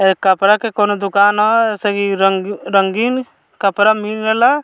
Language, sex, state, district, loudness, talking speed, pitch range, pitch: Bhojpuri, male, Bihar, Muzaffarpur, -15 LUFS, 170 wpm, 200-220 Hz, 205 Hz